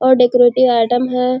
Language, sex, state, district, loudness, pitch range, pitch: Hindi, female, Bihar, Muzaffarpur, -13 LUFS, 245-255 Hz, 250 Hz